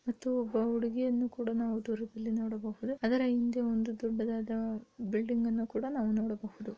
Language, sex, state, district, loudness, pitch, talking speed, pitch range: Kannada, female, Karnataka, Mysore, -33 LUFS, 230 Hz, 140 wpm, 225-240 Hz